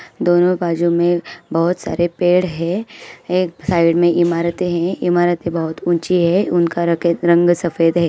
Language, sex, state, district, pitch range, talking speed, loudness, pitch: Hindi, female, Bihar, Gopalganj, 170-175 Hz, 155 wpm, -17 LUFS, 175 Hz